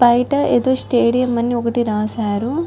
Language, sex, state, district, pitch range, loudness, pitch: Telugu, female, Telangana, Nalgonda, 235-250 Hz, -17 LUFS, 240 Hz